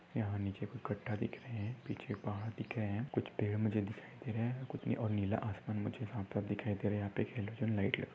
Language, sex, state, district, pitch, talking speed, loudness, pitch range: Hindi, male, Maharashtra, Dhule, 110 Hz, 260 wpm, -39 LUFS, 105-120 Hz